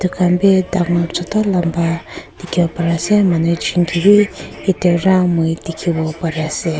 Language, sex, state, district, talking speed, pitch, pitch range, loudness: Nagamese, female, Nagaland, Kohima, 175 wpm, 175 Hz, 165-185 Hz, -16 LUFS